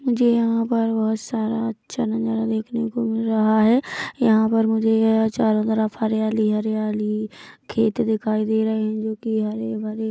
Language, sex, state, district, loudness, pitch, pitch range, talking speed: Hindi, male, Chhattisgarh, Rajnandgaon, -21 LUFS, 220 Hz, 220-225 Hz, 180 wpm